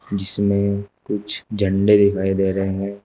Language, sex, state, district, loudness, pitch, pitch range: Hindi, male, Uttar Pradesh, Shamli, -17 LUFS, 100 Hz, 95-100 Hz